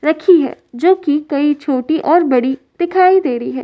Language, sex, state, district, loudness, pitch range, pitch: Hindi, female, Uttar Pradesh, Varanasi, -14 LUFS, 265-345 Hz, 295 Hz